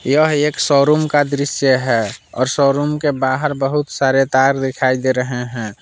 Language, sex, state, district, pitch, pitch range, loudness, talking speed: Hindi, male, Jharkhand, Palamu, 135 Hz, 130-145 Hz, -16 LUFS, 175 wpm